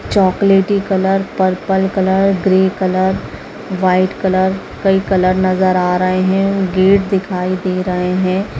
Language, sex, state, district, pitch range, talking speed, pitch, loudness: Hindi, female, Chhattisgarh, Raigarh, 185-195 Hz, 135 wpm, 190 Hz, -14 LUFS